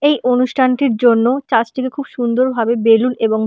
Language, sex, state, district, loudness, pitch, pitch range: Bengali, female, West Bengal, Purulia, -15 LUFS, 250 Hz, 230-260 Hz